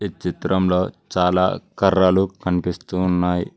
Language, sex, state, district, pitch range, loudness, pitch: Telugu, male, Telangana, Mahabubabad, 90-95 Hz, -20 LUFS, 90 Hz